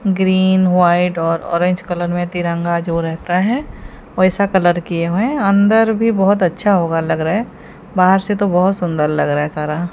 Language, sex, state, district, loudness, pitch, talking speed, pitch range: Hindi, female, Odisha, Sambalpur, -15 LUFS, 180 Hz, 195 wpm, 170-195 Hz